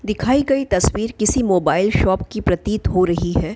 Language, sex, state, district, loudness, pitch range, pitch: Hindi, female, Bihar, Kishanganj, -18 LUFS, 185-235 Hz, 215 Hz